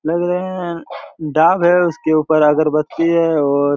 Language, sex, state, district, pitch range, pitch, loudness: Hindi, male, Chhattisgarh, Raigarh, 155-175 Hz, 160 Hz, -15 LUFS